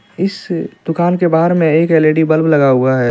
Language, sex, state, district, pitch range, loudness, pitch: Hindi, male, Jharkhand, Deoghar, 155-175 Hz, -13 LUFS, 160 Hz